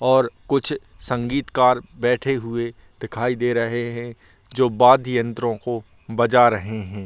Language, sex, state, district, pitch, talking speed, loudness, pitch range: Hindi, male, Bihar, Samastipur, 120 Hz, 145 wpm, -20 LUFS, 115-125 Hz